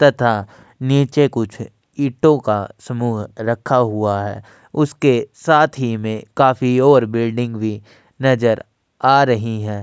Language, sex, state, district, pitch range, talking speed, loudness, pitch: Hindi, male, Uttar Pradesh, Jyotiba Phule Nagar, 110-135 Hz, 130 wpm, -17 LUFS, 120 Hz